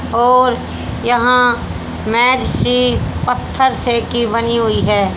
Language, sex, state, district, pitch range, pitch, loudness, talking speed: Hindi, female, Haryana, Jhajjar, 235-250 Hz, 240 Hz, -15 LUFS, 105 wpm